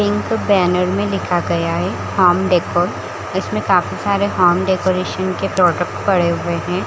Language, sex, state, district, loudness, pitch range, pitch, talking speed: Hindi, female, Chhattisgarh, Bilaspur, -17 LUFS, 175-195 Hz, 180 Hz, 165 wpm